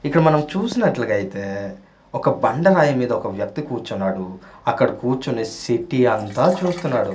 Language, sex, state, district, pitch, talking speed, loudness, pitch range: Telugu, male, Andhra Pradesh, Manyam, 125 Hz, 125 wpm, -20 LUFS, 100-160 Hz